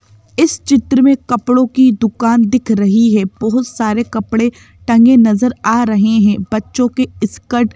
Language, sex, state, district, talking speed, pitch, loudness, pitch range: Hindi, female, Madhya Pradesh, Bhopal, 160 wpm, 230 Hz, -13 LUFS, 215-250 Hz